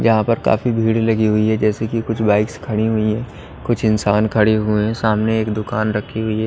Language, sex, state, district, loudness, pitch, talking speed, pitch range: Hindi, male, Odisha, Nuapada, -18 LUFS, 110 Hz, 225 wpm, 105-110 Hz